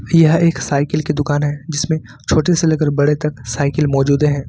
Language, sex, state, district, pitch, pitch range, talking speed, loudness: Hindi, male, Jharkhand, Ranchi, 150 Hz, 140-155 Hz, 200 wpm, -16 LUFS